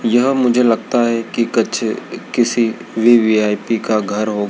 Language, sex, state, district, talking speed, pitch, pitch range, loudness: Hindi, male, Madhya Pradesh, Dhar, 135 wpm, 115 Hz, 110-120 Hz, -16 LUFS